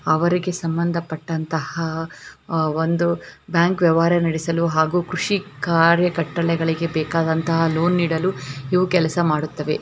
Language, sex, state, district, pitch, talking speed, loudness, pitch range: Kannada, female, Karnataka, Bellary, 165 Hz, 110 wpm, -20 LUFS, 160-175 Hz